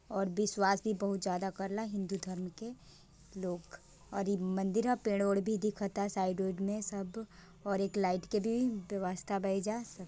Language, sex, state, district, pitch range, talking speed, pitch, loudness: Bhojpuri, female, Bihar, Gopalganj, 185-210 Hz, 170 wpm, 195 Hz, -35 LUFS